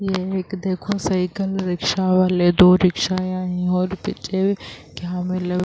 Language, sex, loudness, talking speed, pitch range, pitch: Urdu, female, -20 LUFS, 160 wpm, 180-190 Hz, 185 Hz